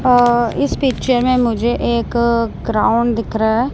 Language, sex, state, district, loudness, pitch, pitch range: Hindi, male, Punjab, Kapurthala, -16 LUFS, 235 Hz, 230-245 Hz